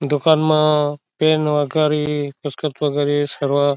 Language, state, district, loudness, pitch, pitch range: Bhili, Maharashtra, Dhule, -18 LUFS, 150 Hz, 145-155 Hz